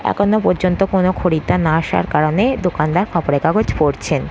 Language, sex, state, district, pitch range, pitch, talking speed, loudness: Bengali, female, West Bengal, North 24 Parganas, 155-190 Hz, 180 Hz, 155 wpm, -16 LUFS